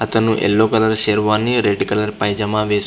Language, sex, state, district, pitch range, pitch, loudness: Telugu, male, Andhra Pradesh, Visakhapatnam, 105-110 Hz, 105 Hz, -16 LUFS